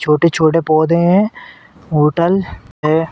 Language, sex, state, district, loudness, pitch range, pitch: Hindi, male, Uttar Pradesh, Ghazipur, -14 LUFS, 155-170 Hz, 160 Hz